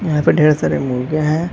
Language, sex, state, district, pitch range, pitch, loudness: Hindi, male, Chhattisgarh, Bilaspur, 150-155 Hz, 155 Hz, -16 LUFS